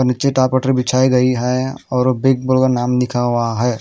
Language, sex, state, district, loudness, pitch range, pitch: Hindi, male, Haryana, Charkhi Dadri, -16 LUFS, 125-130 Hz, 125 Hz